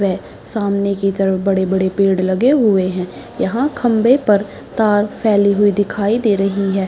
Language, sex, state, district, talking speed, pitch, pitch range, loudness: Hindi, female, Bihar, Madhepura, 165 wpm, 200 Hz, 195-215 Hz, -16 LUFS